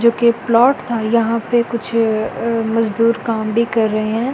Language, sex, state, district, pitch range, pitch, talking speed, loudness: Hindi, female, Delhi, New Delhi, 225-235 Hz, 230 Hz, 180 wpm, -16 LUFS